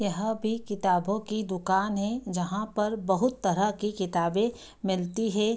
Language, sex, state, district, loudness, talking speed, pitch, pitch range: Hindi, female, Bihar, Darbhanga, -28 LUFS, 150 wpm, 205 Hz, 190-215 Hz